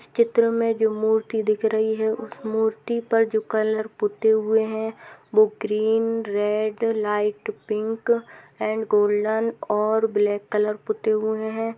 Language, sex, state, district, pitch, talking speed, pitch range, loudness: Hindi, female, Bihar, East Champaran, 220 Hz, 130 wpm, 215-225 Hz, -23 LUFS